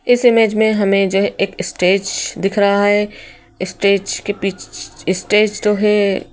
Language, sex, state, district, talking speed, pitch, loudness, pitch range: Hindi, female, Madhya Pradesh, Bhopal, 150 wpm, 205 Hz, -16 LUFS, 195-210 Hz